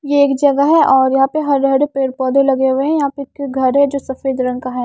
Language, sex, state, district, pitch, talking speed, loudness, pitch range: Hindi, female, Punjab, Kapurthala, 275 Hz, 270 wpm, -14 LUFS, 265-280 Hz